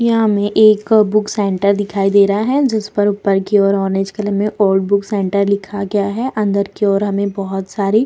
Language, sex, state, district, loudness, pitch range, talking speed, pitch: Hindi, female, Bihar, Vaishali, -15 LUFS, 200-210 Hz, 225 wpm, 200 Hz